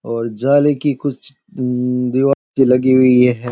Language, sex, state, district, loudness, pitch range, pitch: Rajasthani, male, Rajasthan, Churu, -15 LUFS, 125-140 Hz, 130 Hz